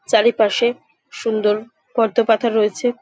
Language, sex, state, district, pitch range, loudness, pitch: Bengali, female, West Bengal, Jhargram, 215-235 Hz, -18 LUFS, 225 Hz